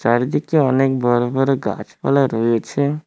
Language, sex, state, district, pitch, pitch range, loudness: Bengali, male, West Bengal, Cooch Behar, 130 Hz, 120-140 Hz, -18 LUFS